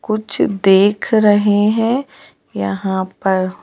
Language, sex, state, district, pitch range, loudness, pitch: Hindi, female, Madhya Pradesh, Bhopal, 190-215 Hz, -15 LUFS, 205 Hz